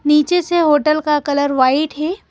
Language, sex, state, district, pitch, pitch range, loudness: Hindi, female, Madhya Pradesh, Bhopal, 300 Hz, 290-315 Hz, -15 LUFS